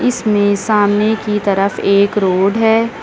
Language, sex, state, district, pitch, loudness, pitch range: Hindi, female, Uttar Pradesh, Lucknow, 205 Hz, -14 LUFS, 200-220 Hz